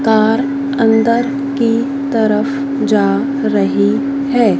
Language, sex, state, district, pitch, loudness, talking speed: Hindi, female, Madhya Pradesh, Dhar, 235 Hz, -14 LUFS, 90 wpm